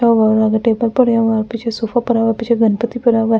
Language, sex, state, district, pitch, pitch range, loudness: Hindi, female, Delhi, New Delhi, 230 Hz, 225-235 Hz, -15 LUFS